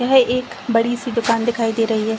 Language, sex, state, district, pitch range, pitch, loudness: Hindi, female, Chhattisgarh, Bilaspur, 225-245 Hz, 235 Hz, -19 LUFS